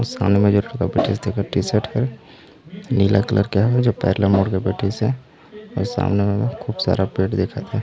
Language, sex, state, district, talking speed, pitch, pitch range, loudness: Chhattisgarhi, male, Chhattisgarh, Raigarh, 205 wpm, 105 Hz, 100-120 Hz, -20 LUFS